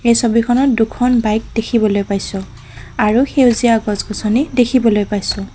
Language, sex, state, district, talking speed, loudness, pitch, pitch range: Assamese, female, Assam, Kamrup Metropolitan, 120 wpm, -15 LUFS, 225 Hz, 205-245 Hz